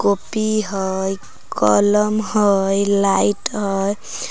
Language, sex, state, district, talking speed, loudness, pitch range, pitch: Magahi, female, Jharkhand, Palamu, 85 wpm, -18 LUFS, 195-210 Hz, 200 Hz